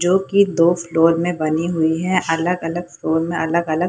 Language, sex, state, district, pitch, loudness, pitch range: Hindi, female, Bihar, Purnia, 170 Hz, -18 LUFS, 165-175 Hz